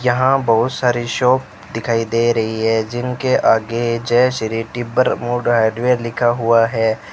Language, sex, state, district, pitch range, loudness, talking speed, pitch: Hindi, male, Rajasthan, Bikaner, 115-125 Hz, -17 LUFS, 150 wpm, 120 Hz